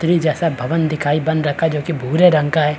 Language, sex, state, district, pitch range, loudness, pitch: Hindi, male, Chhattisgarh, Bilaspur, 150-165 Hz, -17 LUFS, 155 Hz